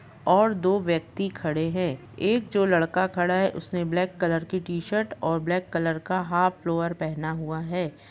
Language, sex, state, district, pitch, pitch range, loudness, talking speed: Hindi, female, Uttar Pradesh, Jalaun, 175 Hz, 165-185 Hz, -26 LUFS, 180 wpm